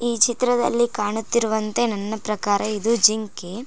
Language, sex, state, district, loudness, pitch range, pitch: Kannada, female, Karnataka, Koppal, -21 LUFS, 210-235 Hz, 220 Hz